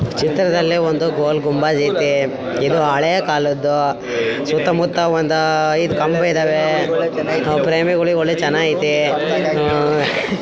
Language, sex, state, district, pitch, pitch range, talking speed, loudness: Kannada, female, Karnataka, Bijapur, 155 Hz, 145-165 Hz, 80 wpm, -17 LUFS